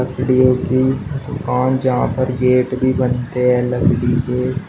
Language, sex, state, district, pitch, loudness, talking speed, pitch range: Hindi, male, Uttar Pradesh, Shamli, 130 Hz, -17 LUFS, 140 wpm, 125-130 Hz